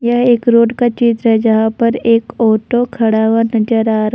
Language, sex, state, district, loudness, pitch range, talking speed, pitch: Hindi, female, Jharkhand, Deoghar, -13 LUFS, 225-235 Hz, 215 wpm, 230 Hz